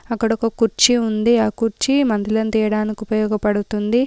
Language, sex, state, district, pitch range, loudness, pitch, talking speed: Telugu, female, Telangana, Komaram Bheem, 215-230 Hz, -18 LUFS, 220 Hz, 120 wpm